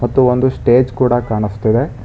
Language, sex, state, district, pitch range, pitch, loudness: Kannada, male, Karnataka, Bangalore, 115-130 Hz, 120 Hz, -14 LUFS